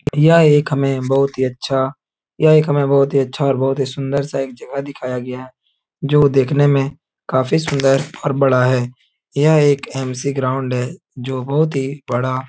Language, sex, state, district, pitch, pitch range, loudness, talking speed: Hindi, male, Uttar Pradesh, Etah, 135 Hz, 130-145 Hz, -17 LUFS, 185 wpm